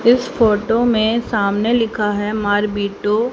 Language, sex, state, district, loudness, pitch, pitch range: Hindi, female, Haryana, Jhajjar, -17 LUFS, 215 Hz, 205-235 Hz